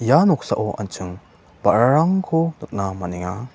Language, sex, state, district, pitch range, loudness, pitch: Garo, male, Meghalaya, West Garo Hills, 95-160 Hz, -20 LUFS, 115 Hz